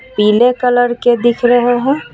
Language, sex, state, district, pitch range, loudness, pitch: Hindi, female, Jharkhand, Ranchi, 240-250 Hz, -12 LUFS, 245 Hz